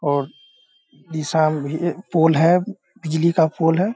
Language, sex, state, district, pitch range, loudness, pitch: Hindi, male, Bihar, Sitamarhi, 155-175 Hz, -19 LUFS, 165 Hz